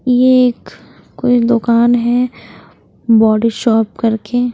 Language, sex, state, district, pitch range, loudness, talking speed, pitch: Hindi, female, Haryana, Rohtak, 225-245 Hz, -13 LUFS, 105 wpm, 235 Hz